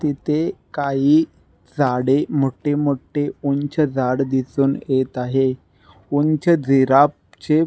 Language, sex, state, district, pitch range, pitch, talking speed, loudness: Marathi, male, Maharashtra, Nagpur, 130-150 Hz, 140 Hz, 110 wpm, -19 LUFS